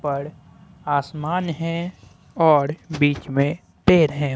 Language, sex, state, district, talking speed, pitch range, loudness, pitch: Hindi, male, Bihar, Muzaffarpur, 110 wpm, 145-170 Hz, -21 LUFS, 150 Hz